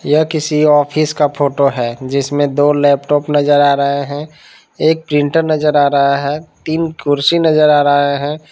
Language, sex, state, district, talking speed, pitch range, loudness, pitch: Hindi, male, Jharkhand, Palamu, 175 wpm, 140-155 Hz, -13 LUFS, 145 Hz